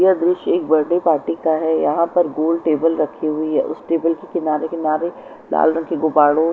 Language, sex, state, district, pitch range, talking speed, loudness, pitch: Hindi, female, Chandigarh, Chandigarh, 155-170 Hz, 210 wpm, -18 LUFS, 160 Hz